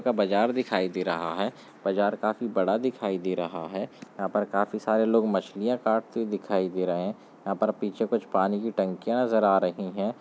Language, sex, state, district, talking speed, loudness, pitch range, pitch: Hindi, male, Chhattisgarh, Balrampur, 205 wpm, -27 LUFS, 95-110 Hz, 105 Hz